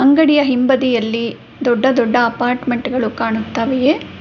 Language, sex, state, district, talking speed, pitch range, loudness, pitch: Kannada, female, Karnataka, Bangalore, 100 wpm, 235-265 Hz, -16 LUFS, 250 Hz